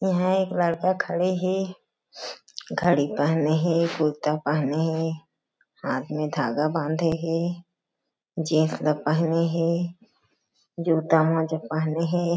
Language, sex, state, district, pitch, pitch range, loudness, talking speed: Chhattisgarhi, female, Chhattisgarh, Jashpur, 165 Hz, 155-175 Hz, -24 LUFS, 115 wpm